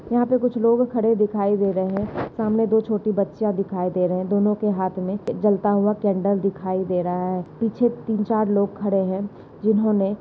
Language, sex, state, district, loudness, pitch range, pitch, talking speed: Hindi, female, Maharashtra, Nagpur, -22 LUFS, 190-220 Hz, 205 Hz, 215 wpm